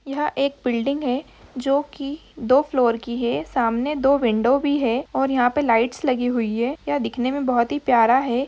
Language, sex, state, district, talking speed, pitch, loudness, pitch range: Hindi, female, Bihar, Sitamarhi, 205 wpm, 260 Hz, -21 LUFS, 240-280 Hz